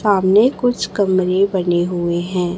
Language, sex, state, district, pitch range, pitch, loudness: Hindi, female, Chhattisgarh, Raipur, 180-205 Hz, 185 Hz, -16 LUFS